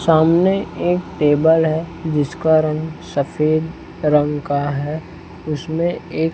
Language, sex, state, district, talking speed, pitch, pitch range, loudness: Hindi, male, Chhattisgarh, Raipur, 115 wpm, 155 Hz, 150-165 Hz, -18 LUFS